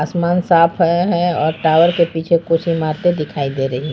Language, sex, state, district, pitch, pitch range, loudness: Hindi, female, Jharkhand, Palamu, 165 Hz, 155-175 Hz, -16 LUFS